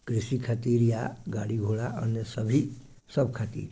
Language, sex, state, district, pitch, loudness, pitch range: Bhojpuri, male, Bihar, Gopalganj, 115 Hz, -29 LUFS, 110-130 Hz